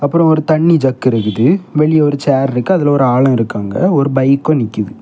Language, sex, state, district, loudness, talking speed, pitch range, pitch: Tamil, male, Tamil Nadu, Kanyakumari, -13 LUFS, 190 wpm, 125-155 Hz, 140 Hz